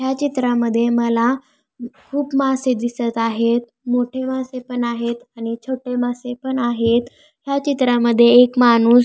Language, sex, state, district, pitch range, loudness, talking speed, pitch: Marathi, female, Maharashtra, Pune, 235-260 Hz, -18 LUFS, 130 wpm, 245 Hz